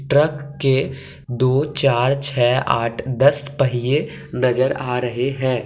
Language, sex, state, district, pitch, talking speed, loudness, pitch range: Hindi, male, Jharkhand, Deoghar, 135 Hz, 125 wpm, -19 LUFS, 125-140 Hz